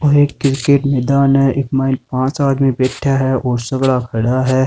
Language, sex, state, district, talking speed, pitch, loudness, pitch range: Rajasthani, male, Rajasthan, Nagaur, 190 wpm, 135 Hz, -15 LUFS, 130-140 Hz